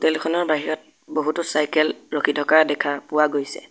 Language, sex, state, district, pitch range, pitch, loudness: Assamese, male, Assam, Sonitpur, 145-155 Hz, 155 Hz, -21 LUFS